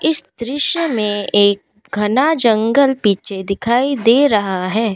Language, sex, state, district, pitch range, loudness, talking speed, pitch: Hindi, female, Assam, Kamrup Metropolitan, 205-270 Hz, -15 LUFS, 135 wpm, 225 Hz